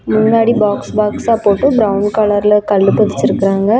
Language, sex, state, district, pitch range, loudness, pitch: Tamil, female, Tamil Nadu, Namakkal, 205-225 Hz, -12 LUFS, 210 Hz